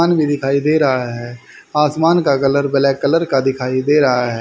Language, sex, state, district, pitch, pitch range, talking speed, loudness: Hindi, male, Haryana, Rohtak, 140 Hz, 130-150 Hz, 175 wpm, -15 LUFS